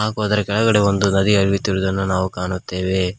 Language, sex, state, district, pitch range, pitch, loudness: Kannada, male, Karnataka, Koppal, 95-105 Hz, 95 Hz, -18 LUFS